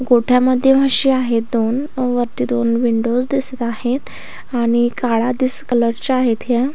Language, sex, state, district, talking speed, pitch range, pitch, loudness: Marathi, female, Maharashtra, Aurangabad, 150 wpm, 235-260 Hz, 245 Hz, -16 LUFS